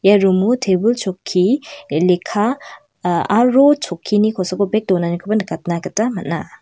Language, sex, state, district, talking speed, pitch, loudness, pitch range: Garo, female, Meghalaya, West Garo Hills, 125 wpm, 200 Hz, -17 LUFS, 185-230 Hz